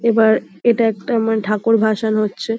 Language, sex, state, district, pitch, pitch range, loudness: Bengali, female, West Bengal, Jhargram, 225 Hz, 215-230 Hz, -17 LUFS